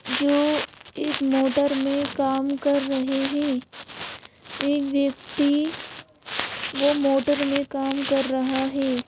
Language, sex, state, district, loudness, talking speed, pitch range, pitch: Hindi, female, Madhya Pradesh, Bhopal, -23 LUFS, 110 wpm, 270-285 Hz, 280 Hz